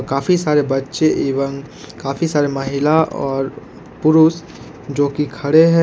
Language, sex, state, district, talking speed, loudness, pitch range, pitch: Hindi, male, Jharkhand, Ranchi, 135 wpm, -17 LUFS, 135-160 Hz, 145 Hz